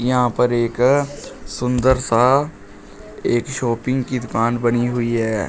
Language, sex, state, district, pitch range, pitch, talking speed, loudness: Hindi, male, Uttar Pradesh, Shamli, 120-130 Hz, 125 Hz, 130 wpm, -19 LUFS